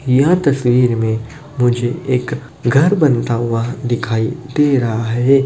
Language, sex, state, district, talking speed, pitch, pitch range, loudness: Hindi, male, Bihar, Madhepura, 130 wpm, 125 Hz, 120-140 Hz, -16 LUFS